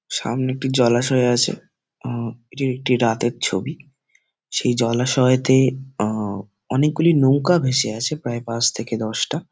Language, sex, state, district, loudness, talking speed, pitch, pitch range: Bengali, male, West Bengal, Kolkata, -20 LUFS, 130 wpm, 125 Hz, 115-135 Hz